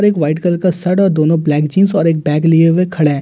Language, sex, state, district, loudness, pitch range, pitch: Hindi, male, Delhi, New Delhi, -13 LUFS, 155-185 Hz, 165 Hz